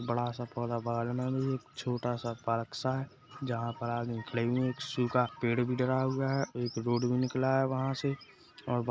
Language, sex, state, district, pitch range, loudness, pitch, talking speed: Hindi, male, Chhattisgarh, Kabirdham, 120-130 Hz, -33 LUFS, 125 Hz, 230 wpm